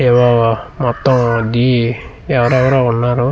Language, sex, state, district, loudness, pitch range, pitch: Telugu, male, Andhra Pradesh, Manyam, -14 LUFS, 120-130 Hz, 120 Hz